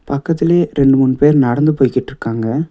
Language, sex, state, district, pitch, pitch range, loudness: Tamil, male, Tamil Nadu, Nilgiris, 140 Hz, 130-155 Hz, -14 LUFS